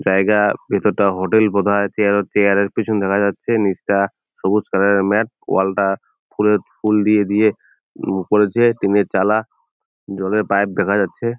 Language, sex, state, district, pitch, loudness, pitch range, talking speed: Bengali, male, West Bengal, Jalpaiguri, 100 Hz, -17 LUFS, 100-105 Hz, 165 wpm